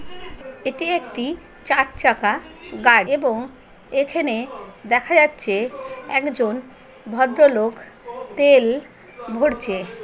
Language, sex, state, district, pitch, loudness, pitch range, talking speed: Bengali, female, West Bengal, North 24 Parganas, 265 Hz, -19 LUFS, 240-295 Hz, 80 wpm